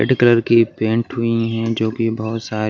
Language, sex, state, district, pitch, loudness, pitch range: Hindi, male, Maharashtra, Washim, 115 Hz, -18 LUFS, 110-115 Hz